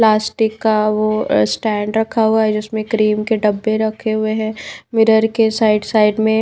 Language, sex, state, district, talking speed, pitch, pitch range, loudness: Hindi, female, Haryana, Rohtak, 180 wpm, 220 Hz, 215-220 Hz, -16 LUFS